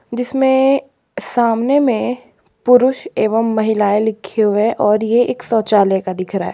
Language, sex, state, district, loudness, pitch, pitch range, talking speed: Hindi, female, Jharkhand, Palamu, -15 LUFS, 230 Hz, 210-255 Hz, 155 wpm